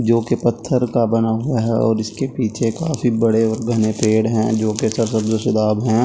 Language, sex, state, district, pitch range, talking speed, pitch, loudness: Hindi, male, Delhi, New Delhi, 110-120 Hz, 190 wpm, 115 Hz, -18 LUFS